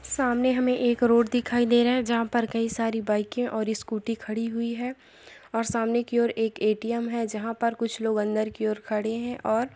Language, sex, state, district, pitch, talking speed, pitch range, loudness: Hindi, female, Uttar Pradesh, Etah, 230 Hz, 220 wpm, 220-240 Hz, -26 LUFS